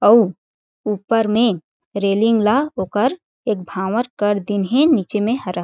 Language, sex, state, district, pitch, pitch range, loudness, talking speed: Chhattisgarhi, female, Chhattisgarh, Jashpur, 215 Hz, 200-235 Hz, -18 LUFS, 150 wpm